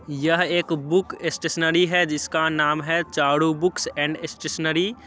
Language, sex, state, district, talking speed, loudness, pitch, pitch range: Hindi, male, Bihar, Muzaffarpur, 155 wpm, -22 LUFS, 160 Hz, 155-175 Hz